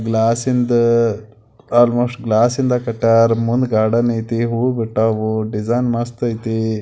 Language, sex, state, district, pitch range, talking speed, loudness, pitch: Kannada, male, Karnataka, Belgaum, 110-120 Hz, 115 wpm, -17 LUFS, 115 Hz